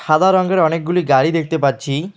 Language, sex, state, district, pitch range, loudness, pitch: Bengali, male, West Bengal, Alipurduar, 150-180 Hz, -16 LUFS, 160 Hz